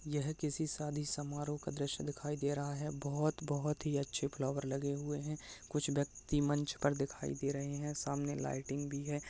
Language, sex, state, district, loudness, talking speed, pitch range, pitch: Hindi, male, Uttarakhand, Tehri Garhwal, -38 LUFS, 195 wpm, 140-150 Hz, 145 Hz